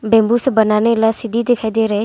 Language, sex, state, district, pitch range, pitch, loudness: Hindi, female, Arunachal Pradesh, Longding, 220-230 Hz, 225 Hz, -15 LUFS